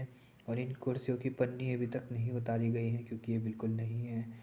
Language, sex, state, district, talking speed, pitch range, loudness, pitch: Hindi, male, Uttar Pradesh, Jyotiba Phule Nagar, 215 wpm, 115-125 Hz, -37 LUFS, 120 Hz